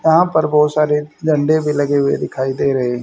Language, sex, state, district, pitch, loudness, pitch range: Hindi, male, Haryana, Rohtak, 150 Hz, -16 LUFS, 140-155 Hz